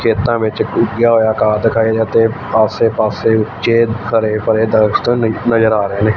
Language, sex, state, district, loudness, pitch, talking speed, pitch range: Punjabi, male, Punjab, Fazilka, -14 LUFS, 110 Hz, 165 wpm, 110-115 Hz